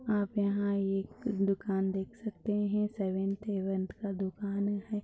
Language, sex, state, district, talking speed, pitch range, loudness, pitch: Hindi, female, Maharashtra, Dhule, 145 wpm, 195-210 Hz, -33 LUFS, 200 Hz